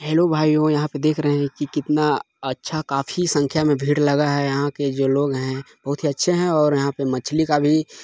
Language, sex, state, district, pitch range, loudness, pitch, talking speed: Hindi, male, Chhattisgarh, Balrampur, 140-155 Hz, -20 LUFS, 145 Hz, 230 wpm